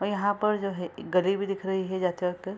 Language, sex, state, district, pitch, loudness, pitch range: Hindi, female, Bihar, Kishanganj, 190 Hz, -28 LUFS, 180-200 Hz